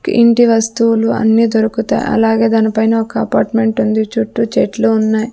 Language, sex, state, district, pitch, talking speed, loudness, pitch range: Telugu, female, Andhra Pradesh, Sri Satya Sai, 225 Hz, 135 wpm, -13 LUFS, 220-230 Hz